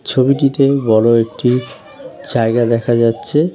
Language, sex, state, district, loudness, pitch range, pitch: Bengali, male, West Bengal, Jalpaiguri, -14 LUFS, 115-135 Hz, 120 Hz